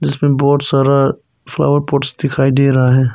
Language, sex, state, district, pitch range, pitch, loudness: Hindi, male, Arunachal Pradesh, Papum Pare, 135-145 Hz, 140 Hz, -14 LUFS